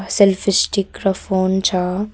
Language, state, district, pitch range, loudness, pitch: Nepali, West Bengal, Darjeeling, 185-200 Hz, -17 LUFS, 195 Hz